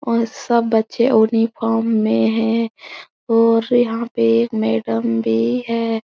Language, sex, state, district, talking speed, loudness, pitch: Hindi, female, Bihar, Supaul, 130 wpm, -17 LUFS, 225 Hz